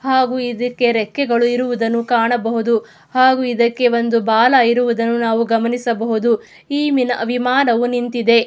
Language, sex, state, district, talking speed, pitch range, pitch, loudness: Kannada, female, Karnataka, Mysore, 90 wpm, 230-245 Hz, 240 Hz, -16 LUFS